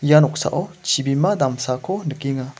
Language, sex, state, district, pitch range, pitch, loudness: Garo, male, Meghalaya, West Garo Hills, 135-175 Hz, 145 Hz, -20 LUFS